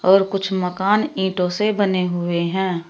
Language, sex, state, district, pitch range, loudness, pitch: Hindi, female, Uttar Pradesh, Shamli, 180-195 Hz, -20 LUFS, 190 Hz